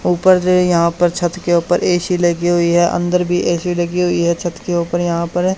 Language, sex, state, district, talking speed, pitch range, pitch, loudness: Hindi, male, Haryana, Charkhi Dadri, 245 wpm, 170-180 Hz, 175 Hz, -15 LUFS